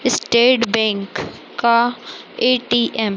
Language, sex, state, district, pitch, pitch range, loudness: Hindi, female, Chhattisgarh, Raigarh, 235 Hz, 220-240 Hz, -17 LUFS